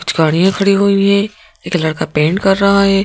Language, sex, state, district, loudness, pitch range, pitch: Hindi, female, Madhya Pradesh, Bhopal, -13 LUFS, 175-200 Hz, 195 Hz